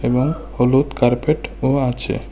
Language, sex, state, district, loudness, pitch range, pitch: Bengali, male, Tripura, West Tripura, -18 LUFS, 125-145 Hz, 130 Hz